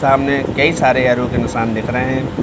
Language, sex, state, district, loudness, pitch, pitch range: Hindi, male, Bihar, Samastipur, -15 LUFS, 130 Hz, 120-135 Hz